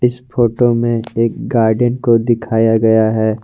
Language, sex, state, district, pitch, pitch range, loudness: Hindi, male, Jharkhand, Garhwa, 115 Hz, 110-120 Hz, -14 LUFS